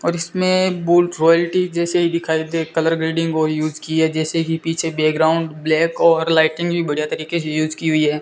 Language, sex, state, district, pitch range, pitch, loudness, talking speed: Hindi, male, Rajasthan, Bikaner, 155-170 Hz, 165 Hz, -18 LUFS, 205 wpm